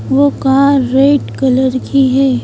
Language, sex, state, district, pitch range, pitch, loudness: Hindi, female, Madhya Pradesh, Bhopal, 260-275 Hz, 270 Hz, -11 LUFS